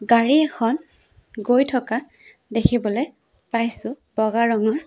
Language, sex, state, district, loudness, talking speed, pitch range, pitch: Assamese, female, Assam, Sonitpur, -21 LUFS, 100 wpm, 230-265 Hz, 235 Hz